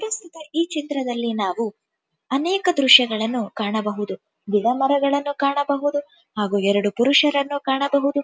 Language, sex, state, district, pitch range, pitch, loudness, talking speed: Kannada, female, Karnataka, Dharwad, 215-285 Hz, 270 Hz, -20 LUFS, 100 wpm